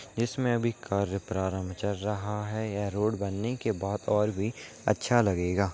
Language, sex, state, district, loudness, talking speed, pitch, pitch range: Hindi, male, Uttarakhand, Tehri Garhwal, -30 LUFS, 180 wpm, 105 Hz, 100-110 Hz